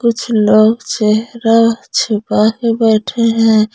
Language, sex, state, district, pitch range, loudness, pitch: Hindi, female, Jharkhand, Garhwa, 215-230 Hz, -13 LUFS, 225 Hz